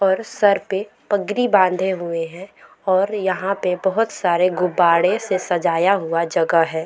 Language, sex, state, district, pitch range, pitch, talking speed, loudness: Hindi, female, Bihar, Vaishali, 175-200 Hz, 185 Hz, 165 wpm, -19 LUFS